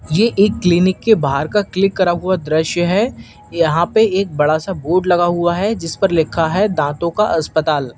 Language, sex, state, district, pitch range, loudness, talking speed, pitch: Hindi, male, Uttar Pradesh, Lalitpur, 160-195 Hz, -16 LUFS, 205 wpm, 175 Hz